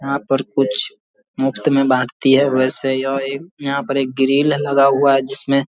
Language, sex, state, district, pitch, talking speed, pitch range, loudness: Hindi, male, Bihar, Vaishali, 135 Hz, 200 wpm, 135-140 Hz, -16 LUFS